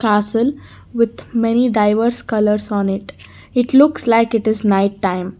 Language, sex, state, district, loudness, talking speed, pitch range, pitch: English, female, Karnataka, Bangalore, -16 LUFS, 155 wpm, 205-235 Hz, 220 Hz